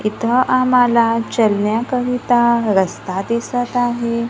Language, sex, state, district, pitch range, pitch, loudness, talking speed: Marathi, female, Maharashtra, Gondia, 225-245 Hz, 235 Hz, -16 LUFS, 95 wpm